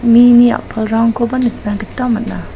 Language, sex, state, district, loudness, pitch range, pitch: Garo, female, Meghalaya, South Garo Hills, -13 LUFS, 225-240 Hz, 235 Hz